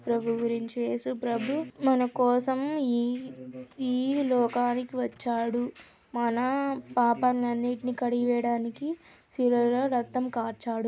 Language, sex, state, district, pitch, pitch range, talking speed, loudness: Telugu, female, Andhra Pradesh, Krishna, 245 Hz, 235-255 Hz, 100 wpm, -28 LUFS